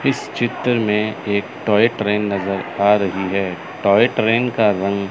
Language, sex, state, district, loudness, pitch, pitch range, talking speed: Hindi, male, Chandigarh, Chandigarh, -18 LUFS, 105 Hz, 100-115 Hz, 165 wpm